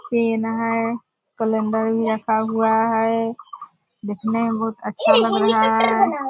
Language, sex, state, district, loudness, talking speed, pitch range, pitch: Hindi, female, Bihar, Purnia, -19 LUFS, 115 wpm, 220-230 Hz, 225 Hz